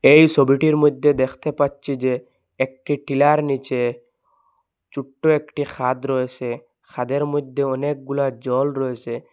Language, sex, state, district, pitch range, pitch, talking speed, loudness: Bengali, male, Assam, Hailakandi, 130-145 Hz, 135 Hz, 115 wpm, -20 LUFS